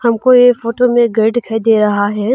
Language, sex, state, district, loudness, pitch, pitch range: Hindi, female, Arunachal Pradesh, Longding, -12 LUFS, 230 Hz, 220-245 Hz